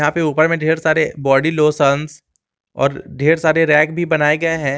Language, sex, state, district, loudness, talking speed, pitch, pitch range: Hindi, male, Jharkhand, Garhwa, -15 LUFS, 200 wpm, 155 Hz, 150-160 Hz